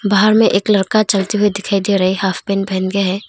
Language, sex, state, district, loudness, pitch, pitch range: Hindi, female, Arunachal Pradesh, Longding, -15 LUFS, 200 Hz, 195-210 Hz